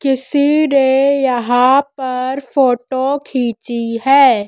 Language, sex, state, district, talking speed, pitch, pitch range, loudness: Hindi, female, Madhya Pradesh, Dhar, 95 wpm, 265 Hz, 245-275 Hz, -14 LUFS